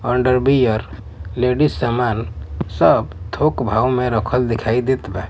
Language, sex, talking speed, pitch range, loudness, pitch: Bhojpuri, male, 135 wpm, 110-125 Hz, -18 LUFS, 120 Hz